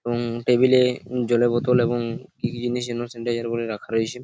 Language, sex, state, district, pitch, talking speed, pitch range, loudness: Bengali, male, West Bengal, Purulia, 120 Hz, 200 wpm, 115-125 Hz, -23 LUFS